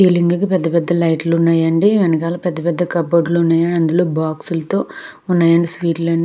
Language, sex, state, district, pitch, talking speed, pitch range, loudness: Telugu, female, Andhra Pradesh, Krishna, 170 Hz, 165 wpm, 165-175 Hz, -16 LUFS